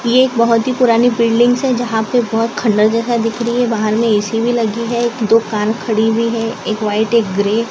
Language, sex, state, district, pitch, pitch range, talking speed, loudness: Hindi, female, Maharashtra, Gondia, 230 Hz, 220-235 Hz, 235 wpm, -15 LUFS